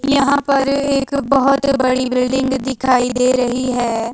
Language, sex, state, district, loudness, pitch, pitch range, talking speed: Hindi, female, Himachal Pradesh, Shimla, -16 LUFS, 265 Hz, 250-275 Hz, 145 wpm